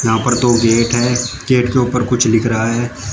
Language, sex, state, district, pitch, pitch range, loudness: Hindi, male, Uttar Pradesh, Shamli, 120 Hz, 115-125 Hz, -14 LUFS